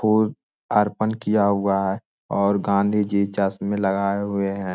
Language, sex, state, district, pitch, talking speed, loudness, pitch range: Hindi, male, Jharkhand, Jamtara, 100 Hz, 150 wpm, -22 LUFS, 100-105 Hz